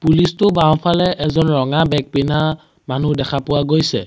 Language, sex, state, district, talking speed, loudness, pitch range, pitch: Assamese, male, Assam, Sonitpur, 145 wpm, -16 LUFS, 145-160 Hz, 155 Hz